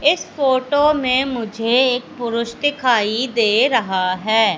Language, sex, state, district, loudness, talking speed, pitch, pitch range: Hindi, female, Madhya Pradesh, Katni, -17 LUFS, 130 wpm, 245 Hz, 225-270 Hz